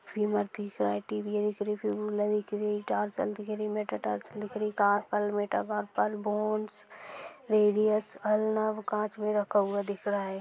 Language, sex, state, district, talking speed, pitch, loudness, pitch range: Hindi, female, Maharashtra, Nagpur, 90 wpm, 210 Hz, -30 LUFS, 205-215 Hz